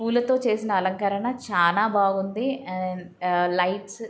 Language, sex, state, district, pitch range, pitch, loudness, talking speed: Telugu, female, Andhra Pradesh, Guntur, 185-225 Hz, 200 Hz, -24 LUFS, 145 wpm